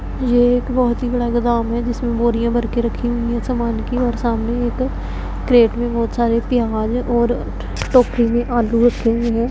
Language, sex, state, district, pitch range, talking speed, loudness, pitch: Hindi, female, Punjab, Pathankot, 235-245 Hz, 185 wpm, -18 LUFS, 240 Hz